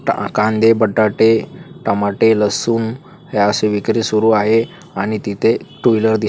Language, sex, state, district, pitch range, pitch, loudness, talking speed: Marathi, female, Maharashtra, Chandrapur, 105-115 Hz, 110 Hz, -16 LUFS, 135 wpm